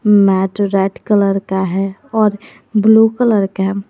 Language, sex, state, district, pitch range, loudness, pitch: Hindi, female, Jharkhand, Garhwa, 195-215 Hz, -14 LUFS, 200 Hz